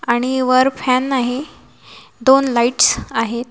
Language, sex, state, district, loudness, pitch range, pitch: Marathi, female, Maharashtra, Washim, -16 LUFS, 240-265 Hz, 255 Hz